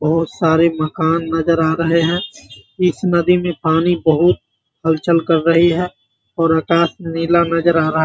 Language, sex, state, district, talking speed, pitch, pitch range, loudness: Maithili, male, Bihar, Muzaffarpur, 170 wpm, 165 Hz, 160-170 Hz, -16 LUFS